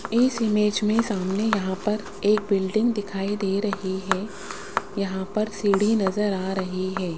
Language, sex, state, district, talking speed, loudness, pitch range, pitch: Hindi, female, Rajasthan, Jaipur, 160 wpm, -24 LUFS, 190-210 Hz, 200 Hz